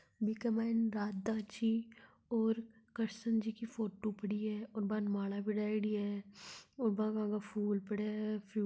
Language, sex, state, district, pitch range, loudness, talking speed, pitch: Marwari, male, Rajasthan, Nagaur, 210-225 Hz, -38 LUFS, 150 wpm, 215 Hz